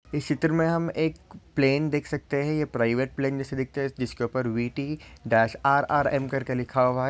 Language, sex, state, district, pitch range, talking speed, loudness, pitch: Hindi, male, Maharashtra, Solapur, 125-150 Hz, 195 wpm, -26 LUFS, 135 Hz